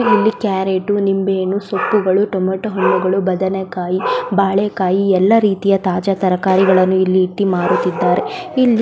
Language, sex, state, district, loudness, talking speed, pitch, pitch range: Kannada, female, Karnataka, Belgaum, -16 LUFS, 115 wpm, 195 Hz, 185-205 Hz